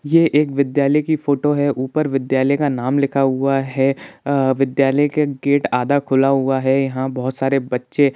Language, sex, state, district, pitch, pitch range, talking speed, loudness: Hindi, male, Bihar, Saran, 135 Hz, 135-145 Hz, 190 wpm, -18 LUFS